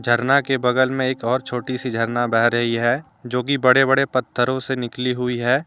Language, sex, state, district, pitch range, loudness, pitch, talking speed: Hindi, male, Jharkhand, Deoghar, 120-130 Hz, -20 LUFS, 125 Hz, 220 wpm